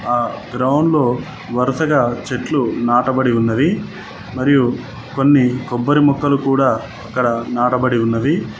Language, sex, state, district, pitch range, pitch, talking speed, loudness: Telugu, male, Telangana, Mahabubabad, 120-135 Hz, 125 Hz, 100 wpm, -16 LUFS